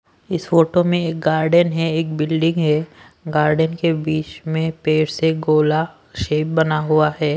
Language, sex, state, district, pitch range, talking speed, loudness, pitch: Hindi, male, Punjab, Pathankot, 155-165 Hz, 165 wpm, -18 LUFS, 160 Hz